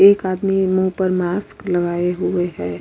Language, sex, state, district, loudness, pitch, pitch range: Hindi, female, Uttar Pradesh, Hamirpur, -19 LUFS, 185 Hz, 175-190 Hz